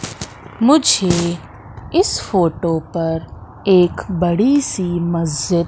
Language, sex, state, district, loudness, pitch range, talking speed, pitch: Hindi, female, Madhya Pradesh, Katni, -17 LUFS, 165-190 Hz, 85 wpm, 175 Hz